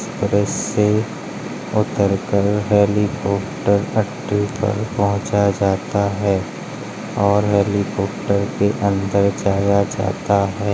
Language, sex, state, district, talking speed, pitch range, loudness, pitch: Hindi, male, Uttar Pradesh, Jalaun, 80 wpm, 100-105 Hz, -19 LUFS, 100 Hz